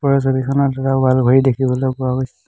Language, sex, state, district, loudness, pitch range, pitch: Assamese, male, Assam, Hailakandi, -16 LUFS, 130-135 Hz, 130 Hz